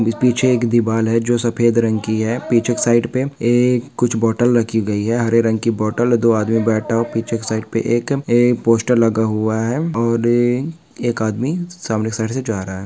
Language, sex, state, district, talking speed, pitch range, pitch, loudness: Hindi, male, Maharashtra, Nagpur, 220 wpm, 110-120 Hz, 115 Hz, -17 LUFS